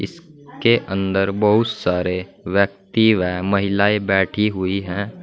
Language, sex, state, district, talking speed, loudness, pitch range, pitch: Hindi, male, Uttar Pradesh, Saharanpur, 115 wpm, -19 LUFS, 95-110 Hz, 100 Hz